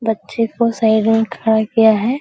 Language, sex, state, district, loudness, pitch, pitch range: Hindi, female, Bihar, Araria, -15 LUFS, 225 Hz, 220-230 Hz